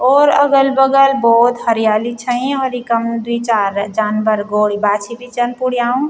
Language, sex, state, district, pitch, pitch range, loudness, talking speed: Garhwali, female, Uttarakhand, Tehri Garhwal, 240 Hz, 220-260 Hz, -14 LUFS, 155 wpm